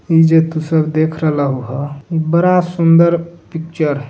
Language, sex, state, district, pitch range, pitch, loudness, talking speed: Hindi, male, Bihar, Darbhanga, 150-170 Hz, 160 Hz, -14 LUFS, 145 wpm